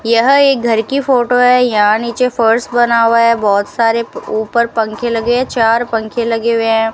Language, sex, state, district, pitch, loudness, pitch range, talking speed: Hindi, female, Rajasthan, Bikaner, 230 Hz, -13 LUFS, 225-240 Hz, 200 wpm